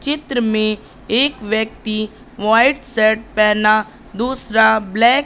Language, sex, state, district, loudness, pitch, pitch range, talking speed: Hindi, female, Madhya Pradesh, Katni, -16 LUFS, 220 Hz, 215-245 Hz, 115 wpm